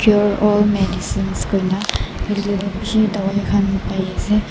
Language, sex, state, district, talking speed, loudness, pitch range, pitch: Nagamese, male, Nagaland, Dimapur, 65 wpm, -18 LUFS, 195-205 Hz, 200 Hz